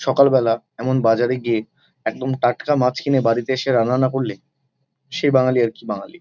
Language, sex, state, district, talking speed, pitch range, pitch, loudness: Bengali, male, West Bengal, Kolkata, 175 wpm, 120-135 Hz, 130 Hz, -19 LUFS